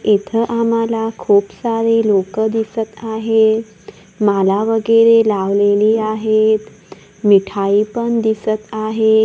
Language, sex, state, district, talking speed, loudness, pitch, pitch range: Marathi, female, Maharashtra, Gondia, 95 wpm, -15 LUFS, 220 Hz, 205-225 Hz